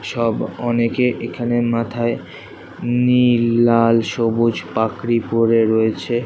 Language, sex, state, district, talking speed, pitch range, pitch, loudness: Bengali, male, West Bengal, Kolkata, 95 wpm, 115-120 Hz, 115 Hz, -18 LUFS